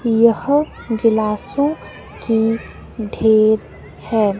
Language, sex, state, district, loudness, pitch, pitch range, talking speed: Hindi, female, Himachal Pradesh, Shimla, -17 LUFS, 225 Hz, 215-230 Hz, 70 wpm